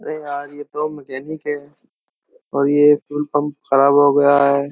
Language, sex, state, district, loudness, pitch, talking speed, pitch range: Hindi, male, Uttar Pradesh, Jyotiba Phule Nagar, -17 LUFS, 145 Hz, 150 wpm, 140-150 Hz